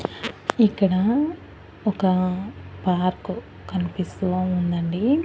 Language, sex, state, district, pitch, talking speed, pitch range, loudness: Telugu, female, Andhra Pradesh, Annamaya, 185 Hz, 55 wpm, 180-210 Hz, -23 LUFS